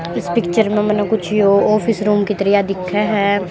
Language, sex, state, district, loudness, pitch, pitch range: Hindi, female, Haryana, Jhajjar, -16 LUFS, 205 Hz, 200-210 Hz